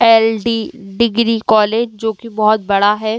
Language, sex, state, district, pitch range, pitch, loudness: Hindi, female, Uttar Pradesh, Jyotiba Phule Nagar, 215-230 Hz, 225 Hz, -15 LUFS